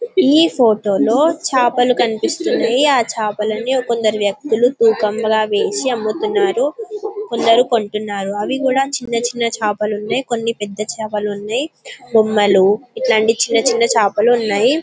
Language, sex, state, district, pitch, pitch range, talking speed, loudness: Telugu, female, Telangana, Karimnagar, 235 Hz, 215-270 Hz, 135 wpm, -16 LUFS